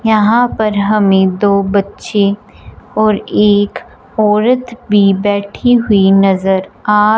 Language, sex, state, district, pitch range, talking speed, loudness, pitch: Hindi, female, Punjab, Fazilka, 200-215 Hz, 110 wpm, -12 LUFS, 205 Hz